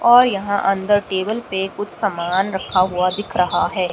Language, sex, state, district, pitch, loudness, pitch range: Hindi, female, Haryana, Rohtak, 195 Hz, -19 LUFS, 185-205 Hz